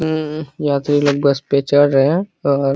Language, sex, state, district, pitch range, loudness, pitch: Hindi, male, Jharkhand, Sahebganj, 140-155 Hz, -16 LUFS, 145 Hz